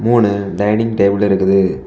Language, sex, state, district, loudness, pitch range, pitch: Tamil, male, Tamil Nadu, Kanyakumari, -14 LUFS, 100-110 Hz, 100 Hz